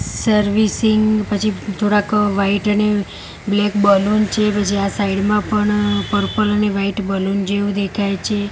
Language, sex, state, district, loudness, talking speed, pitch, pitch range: Gujarati, female, Gujarat, Gandhinagar, -17 LUFS, 140 wpm, 205 Hz, 200-210 Hz